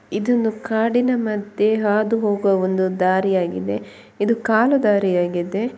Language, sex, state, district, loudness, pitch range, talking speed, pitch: Kannada, male, Karnataka, Mysore, -19 LUFS, 185-225 Hz, 115 wpm, 205 Hz